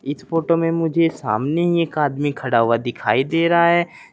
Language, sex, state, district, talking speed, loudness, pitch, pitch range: Hindi, male, Uttar Pradesh, Saharanpur, 190 wpm, -19 LUFS, 160 Hz, 130-165 Hz